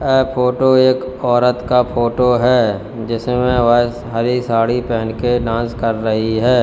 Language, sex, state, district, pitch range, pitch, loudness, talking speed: Hindi, male, Uttar Pradesh, Lalitpur, 115-125 Hz, 120 Hz, -16 LUFS, 155 wpm